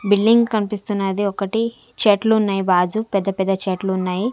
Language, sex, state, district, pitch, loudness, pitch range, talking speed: Telugu, female, Andhra Pradesh, Sri Satya Sai, 200 Hz, -19 LUFS, 195-220 Hz, 140 wpm